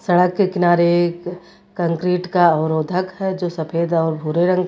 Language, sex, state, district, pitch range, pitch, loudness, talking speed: Hindi, female, Uttar Pradesh, Lucknow, 170-180 Hz, 175 Hz, -18 LUFS, 180 wpm